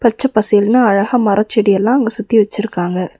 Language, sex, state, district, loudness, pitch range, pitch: Tamil, female, Tamil Nadu, Nilgiris, -13 LUFS, 200-235 Hz, 215 Hz